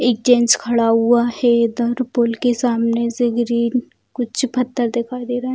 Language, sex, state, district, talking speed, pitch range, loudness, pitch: Hindi, female, Bihar, Bhagalpur, 185 wpm, 235-245 Hz, -18 LUFS, 240 Hz